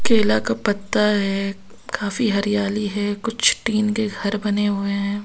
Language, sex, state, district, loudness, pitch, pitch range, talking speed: Hindi, female, Bihar, Katihar, -21 LUFS, 205 Hz, 200-215 Hz, 160 wpm